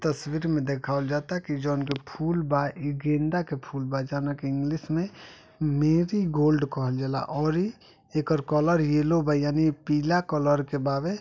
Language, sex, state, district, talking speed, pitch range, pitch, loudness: Bhojpuri, male, Uttar Pradesh, Deoria, 165 wpm, 145-160 Hz, 150 Hz, -26 LUFS